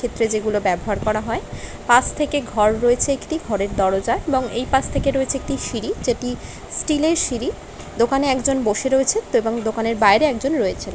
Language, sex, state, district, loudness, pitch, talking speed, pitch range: Bengali, female, West Bengal, Dakshin Dinajpur, -20 LUFS, 245 Hz, 190 wpm, 215-275 Hz